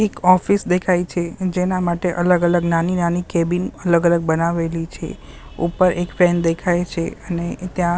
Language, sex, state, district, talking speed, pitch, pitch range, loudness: Gujarati, female, Maharashtra, Mumbai Suburban, 165 wpm, 175 Hz, 170-180 Hz, -19 LUFS